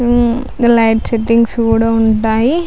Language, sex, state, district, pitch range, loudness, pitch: Telugu, female, Andhra Pradesh, Chittoor, 225-240 Hz, -13 LUFS, 230 Hz